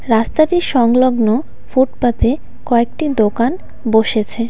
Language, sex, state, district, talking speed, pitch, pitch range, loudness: Bengali, female, West Bengal, Cooch Behar, 80 wpm, 240 Hz, 225-260 Hz, -15 LUFS